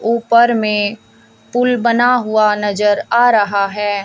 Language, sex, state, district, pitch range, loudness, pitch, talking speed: Hindi, female, Haryana, Jhajjar, 205-235 Hz, -14 LUFS, 220 Hz, 135 wpm